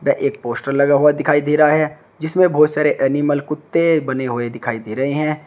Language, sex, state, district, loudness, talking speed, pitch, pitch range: Hindi, male, Uttar Pradesh, Shamli, -17 LUFS, 220 wpm, 145 Hz, 135-150 Hz